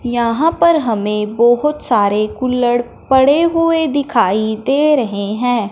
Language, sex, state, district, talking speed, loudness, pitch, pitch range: Hindi, male, Punjab, Fazilka, 125 wpm, -14 LUFS, 245 Hz, 220-295 Hz